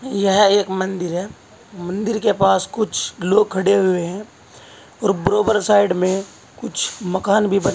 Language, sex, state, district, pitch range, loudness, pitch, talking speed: Hindi, male, Uttar Pradesh, Saharanpur, 190-210 Hz, -18 LUFS, 200 Hz, 155 wpm